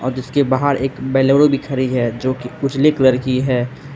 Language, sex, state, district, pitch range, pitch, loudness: Hindi, male, Arunachal Pradesh, Lower Dibang Valley, 130-140 Hz, 130 Hz, -17 LUFS